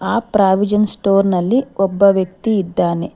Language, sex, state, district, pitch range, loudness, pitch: Kannada, female, Karnataka, Bangalore, 185-210 Hz, -15 LUFS, 195 Hz